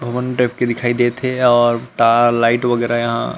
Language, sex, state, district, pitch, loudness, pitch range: Chhattisgarhi, male, Chhattisgarh, Rajnandgaon, 120 Hz, -16 LUFS, 120-125 Hz